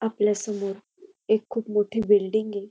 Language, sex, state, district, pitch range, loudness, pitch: Marathi, female, Maharashtra, Dhule, 205-225 Hz, -25 LUFS, 210 Hz